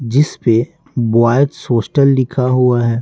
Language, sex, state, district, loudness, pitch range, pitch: Hindi, male, Bihar, Patna, -14 LUFS, 120-140 Hz, 125 Hz